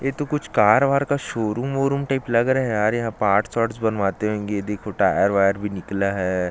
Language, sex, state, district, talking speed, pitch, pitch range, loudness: Hindi, male, Chhattisgarh, Jashpur, 195 wpm, 110 Hz, 100-130 Hz, -21 LUFS